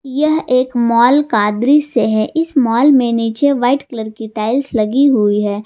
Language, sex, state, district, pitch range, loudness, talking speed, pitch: Hindi, female, Jharkhand, Garhwa, 220-280 Hz, -14 LUFS, 180 wpm, 240 Hz